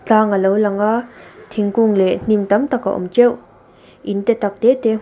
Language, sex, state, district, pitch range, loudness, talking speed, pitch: Mizo, female, Mizoram, Aizawl, 200-230 Hz, -16 LUFS, 215 wpm, 210 Hz